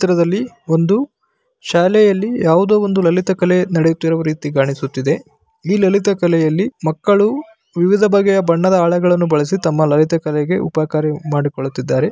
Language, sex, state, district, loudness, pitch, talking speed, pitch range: Kannada, male, Karnataka, Bellary, -15 LUFS, 175 Hz, 125 wpm, 155-200 Hz